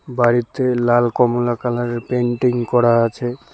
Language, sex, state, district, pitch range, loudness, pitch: Bengali, male, West Bengal, Cooch Behar, 120-125 Hz, -18 LUFS, 120 Hz